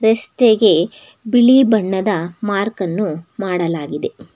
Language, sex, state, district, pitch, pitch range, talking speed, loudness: Kannada, female, Karnataka, Bangalore, 205 Hz, 175-225 Hz, 85 wpm, -16 LUFS